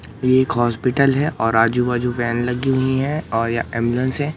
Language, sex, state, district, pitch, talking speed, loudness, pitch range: Hindi, male, Madhya Pradesh, Katni, 125 Hz, 190 wpm, -19 LUFS, 120-135 Hz